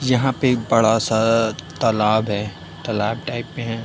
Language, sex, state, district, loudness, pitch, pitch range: Hindi, male, Uttar Pradesh, Varanasi, -20 LUFS, 115 Hz, 105-120 Hz